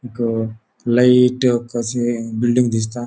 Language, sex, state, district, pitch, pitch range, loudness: Konkani, male, Goa, North and South Goa, 120 Hz, 115-125 Hz, -17 LUFS